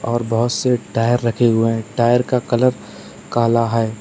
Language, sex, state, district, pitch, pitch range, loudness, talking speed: Hindi, male, Uttar Pradesh, Lalitpur, 120 Hz, 115-120 Hz, -17 LUFS, 180 wpm